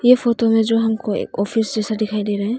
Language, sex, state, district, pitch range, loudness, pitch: Hindi, female, Arunachal Pradesh, Longding, 210-225 Hz, -19 LUFS, 225 Hz